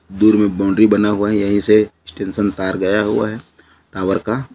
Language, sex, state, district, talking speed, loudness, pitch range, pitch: Hindi, male, Chhattisgarh, Bilaspur, 200 wpm, -16 LUFS, 95-105 Hz, 105 Hz